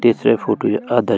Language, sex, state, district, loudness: Garhwali, male, Uttarakhand, Tehri Garhwal, -17 LUFS